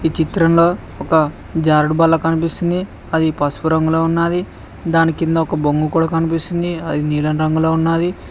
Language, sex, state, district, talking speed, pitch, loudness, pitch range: Telugu, male, Telangana, Mahabubabad, 135 wpm, 165 Hz, -17 LUFS, 155-165 Hz